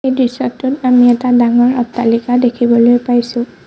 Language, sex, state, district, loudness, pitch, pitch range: Assamese, female, Assam, Sonitpur, -12 LUFS, 245 Hz, 240-250 Hz